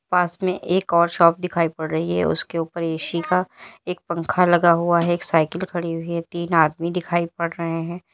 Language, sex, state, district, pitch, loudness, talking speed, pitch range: Hindi, female, Uttar Pradesh, Lalitpur, 170 Hz, -21 LUFS, 215 wpm, 165-175 Hz